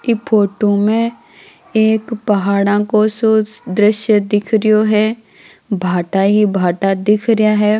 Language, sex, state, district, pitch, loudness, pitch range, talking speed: Marwari, female, Rajasthan, Nagaur, 210 Hz, -14 LUFS, 200-220 Hz, 125 wpm